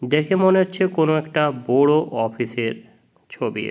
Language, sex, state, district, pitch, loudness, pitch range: Bengali, male, West Bengal, Jhargram, 150 Hz, -20 LUFS, 125-170 Hz